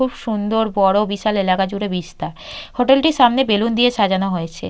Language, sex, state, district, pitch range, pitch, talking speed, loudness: Bengali, female, West Bengal, Purulia, 195-245 Hz, 210 Hz, 190 wpm, -17 LUFS